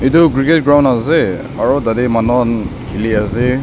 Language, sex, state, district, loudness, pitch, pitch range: Nagamese, male, Nagaland, Dimapur, -14 LUFS, 125 Hz, 115-145 Hz